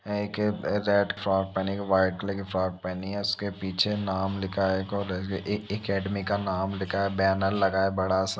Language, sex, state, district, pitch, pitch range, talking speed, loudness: Hindi, male, Uttar Pradesh, Etah, 95 Hz, 95-100 Hz, 215 wpm, -28 LUFS